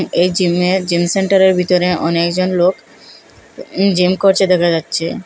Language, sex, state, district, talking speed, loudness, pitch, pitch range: Bengali, female, Assam, Hailakandi, 125 wpm, -14 LUFS, 180 Hz, 175-190 Hz